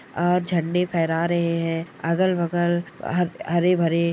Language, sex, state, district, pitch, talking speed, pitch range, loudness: Hindi, male, Chhattisgarh, Sarguja, 170 Hz, 130 wpm, 165-175 Hz, -23 LUFS